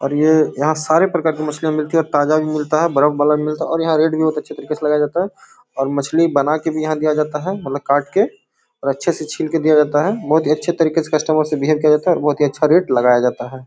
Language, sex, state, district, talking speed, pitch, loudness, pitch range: Hindi, male, Bihar, Bhagalpur, 300 wpm, 155 Hz, -17 LUFS, 150-160 Hz